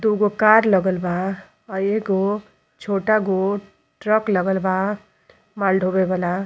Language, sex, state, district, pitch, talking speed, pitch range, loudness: Bhojpuri, female, Uttar Pradesh, Ghazipur, 195 Hz, 130 wpm, 190-210 Hz, -20 LUFS